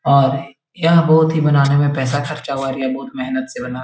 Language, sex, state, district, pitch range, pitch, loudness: Hindi, male, Uttar Pradesh, Etah, 135-150 Hz, 140 Hz, -17 LUFS